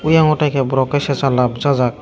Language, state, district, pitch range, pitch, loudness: Kokborok, Tripura, Dhalai, 130-150 Hz, 140 Hz, -16 LUFS